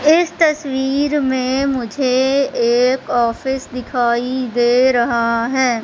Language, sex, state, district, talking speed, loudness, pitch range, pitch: Hindi, female, Madhya Pradesh, Katni, 105 wpm, -16 LUFS, 240-270 Hz, 260 Hz